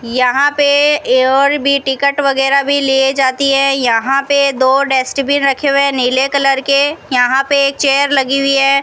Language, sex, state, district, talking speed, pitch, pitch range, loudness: Hindi, female, Rajasthan, Bikaner, 175 wpm, 275 Hz, 270-280 Hz, -12 LUFS